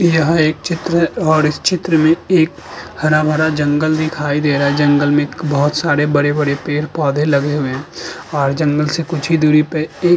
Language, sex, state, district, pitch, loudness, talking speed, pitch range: Hindi, male, Uttar Pradesh, Budaun, 155 Hz, -15 LUFS, 205 wpm, 145-160 Hz